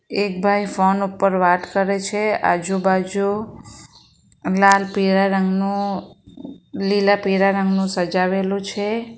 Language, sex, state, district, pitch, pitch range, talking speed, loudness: Gujarati, female, Gujarat, Valsad, 195 Hz, 190-200 Hz, 105 wpm, -19 LUFS